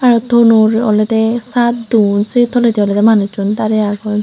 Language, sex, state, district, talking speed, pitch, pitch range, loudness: Chakma, female, Tripura, Unakoti, 155 wpm, 220 Hz, 210-235 Hz, -12 LUFS